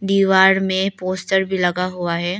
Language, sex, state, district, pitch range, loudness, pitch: Hindi, female, Arunachal Pradesh, Lower Dibang Valley, 180-190 Hz, -18 LUFS, 190 Hz